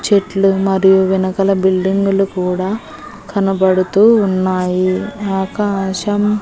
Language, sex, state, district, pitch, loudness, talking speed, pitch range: Telugu, female, Andhra Pradesh, Annamaya, 195 Hz, -15 LUFS, 75 wpm, 190-200 Hz